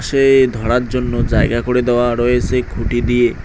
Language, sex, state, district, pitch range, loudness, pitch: Bengali, male, West Bengal, Cooch Behar, 120-125 Hz, -15 LUFS, 120 Hz